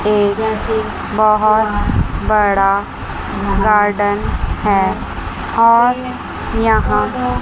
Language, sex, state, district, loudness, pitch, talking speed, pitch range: Hindi, female, Chandigarh, Chandigarh, -15 LUFS, 215 Hz, 55 wpm, 205-220 Hz